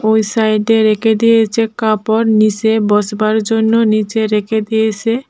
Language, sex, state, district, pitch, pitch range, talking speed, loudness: Bengali, female, Tripura, Dhalai, 220 Hz, 215-225 Hz, 125 wpm, -13 LUFS